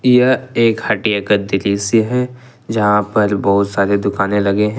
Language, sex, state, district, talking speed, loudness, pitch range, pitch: Hindi, male, Jharkhand, Ranchi, 165 wpm, -15 LUFS, 100-120 Hz, 105 Hz